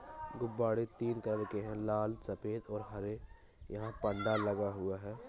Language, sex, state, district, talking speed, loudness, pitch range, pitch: Hindi, male, Uttar Pradesh, Hamirpur, 170 wpm, -38 LUFS, 105-115 Hz, 110 Hz